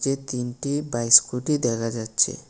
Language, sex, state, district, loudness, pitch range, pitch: Bengali, male, Tripura, West Tripura, -21 LUFS, 115-135 Hz, 125 Hz